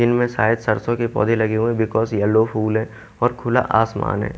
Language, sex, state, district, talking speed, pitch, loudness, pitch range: Hindi, male, Haryana, Jhajjar, 220 wpm, 110 Hz, -19 LUFS, 110-120 Hz